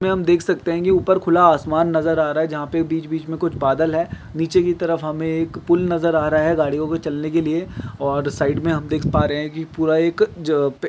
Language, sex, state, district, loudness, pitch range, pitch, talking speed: Hindi, male, Andhra Pradesh, Guntur, -19 LUFS, 155-170 Hz, 160 Hz, 270 wpm